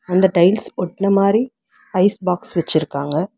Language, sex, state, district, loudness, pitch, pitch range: Tamil, female, Tamil Nadu, Chennai, -18 LUFS, 185 Hz, 175-200 Hz